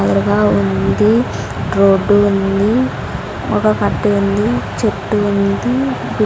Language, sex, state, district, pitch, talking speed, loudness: Telugu, female, Andhra Pradesh, Sri Satya Sai, 195 Hz, 95 wpm, -15 LUFS